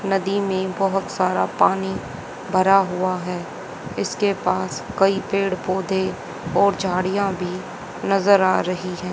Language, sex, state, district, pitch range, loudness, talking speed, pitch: Hindi, female, Haryana, Jhajjar, 185-195 Hz, -21 LUFS, 130 wpm, 190 Hz